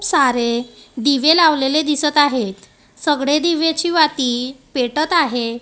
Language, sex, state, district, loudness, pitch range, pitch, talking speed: Marathi, female, Maharashtra, Gondia, -16 LUFS, 250-310 Hz, 285 Hz, 105 wpm